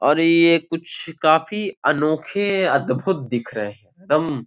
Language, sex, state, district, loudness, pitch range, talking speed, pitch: Hindi, male, Bihar, Gopalganj, -19 LUFS, 140-175 Hz, 150 wpm, 160 Hz